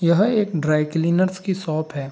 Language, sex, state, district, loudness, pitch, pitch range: Hindi, male, Bihar, Saharsa, -21 LUFS, 170 Hz, 155-185 Hz